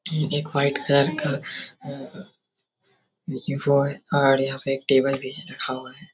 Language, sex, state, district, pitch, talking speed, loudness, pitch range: Hindi, male, Bihar, Darbhanga, 140 Hz, 165 wpm, -23 LUFS, 135-145 Hz